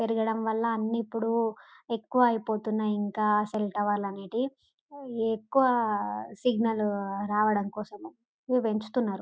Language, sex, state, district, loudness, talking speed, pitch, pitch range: Telugu, female, Telangana, Karimnagar, -29 LUFS, 100 wpm, 220 Hz, 210-230 Hz